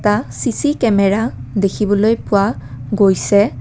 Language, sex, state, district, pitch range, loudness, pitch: Assamese, female, Assam, Kamrup Metropolitan, 195-225 Hz, -16 LUFS, 205 Hz